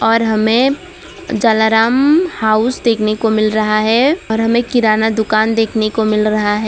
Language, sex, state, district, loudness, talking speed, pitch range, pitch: Hindi, female, Gujarat, Valsad, -13 LUFS, 160 wpm, 215-245 Hz, 225 Hz